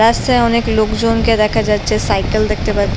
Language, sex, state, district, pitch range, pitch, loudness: Bengali, female, West Bengal, Purulia, 160-230 Hz, 220 Hz, -14 LUFS